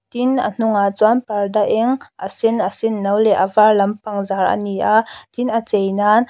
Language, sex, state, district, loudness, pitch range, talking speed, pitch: Mizo, female, Mizoram, Aizawl, -17 LUFS, 200-225 Hz, 220 wpm, 215 Hz